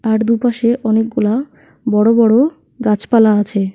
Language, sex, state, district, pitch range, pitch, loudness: Bengali, female, West Bengal, Alipurduar, 215-240 Hz, 225 Hz, -14 LUFS